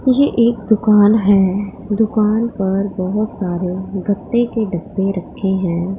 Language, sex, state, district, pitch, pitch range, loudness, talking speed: Hindi, female, Punjab, Pathankot, 200 Hz, 190-220 Hz, -16 LUFS, 130 wpm